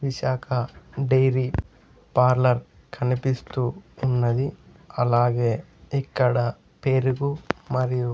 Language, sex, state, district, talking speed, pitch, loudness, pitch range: Telugu, male, Andhra Pradesh, Sri Satya Sai, 65 wpm, 130 Hz, -24 LUFS, 120-135 Hz